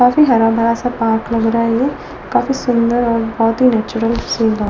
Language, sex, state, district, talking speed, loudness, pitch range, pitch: Hindi, female, Delhi, New Delhi, 180 wpm, -15 LUFS, 225-245 Hz, 230 Hz